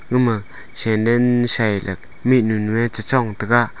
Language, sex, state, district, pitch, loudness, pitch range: Wancho, male, Arunachal Pradesh, Longding, 115 Hz, -19 LUFS, 105-120 Hz